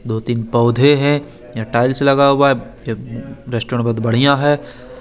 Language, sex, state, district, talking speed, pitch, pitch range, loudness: Hindi, male, Chandigarh, Chandigarh, 170 wpm, 125 Hz, 115-140 Hz, -15 LUFS